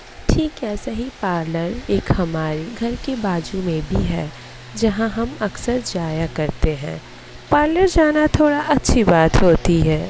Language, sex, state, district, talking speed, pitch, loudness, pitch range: Hindi, female, Bihar, Kishanganj, 150 wpm, 195 Hz, -19 LUFS, 165-245 Hz